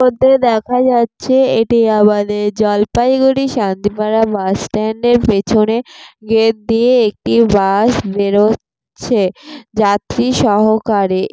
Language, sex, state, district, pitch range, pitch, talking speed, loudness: Bengali, female, West Bengal, Jalpaiguri, 205-240 Hz, 220 Hz, 100 wpm, -13 LUFS